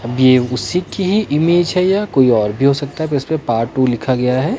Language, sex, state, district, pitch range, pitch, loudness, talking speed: Hindi, male, Himachal Pradesh, Shimla, 125-170 Hz, 135 Hz, -15 LUFS, 275 wpm